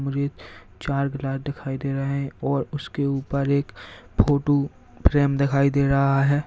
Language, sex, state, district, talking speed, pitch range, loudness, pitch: Hindi, male, Uttar Pradesh, Lalitpur, 140 wpm, 135-140 Hz, -23 LUFS, 140 Hz